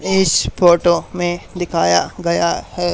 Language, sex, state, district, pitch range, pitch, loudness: Hindi, male, Haryana, Charkhi Dadri, 170-180 Hz, 175 Hz, -16 LUFS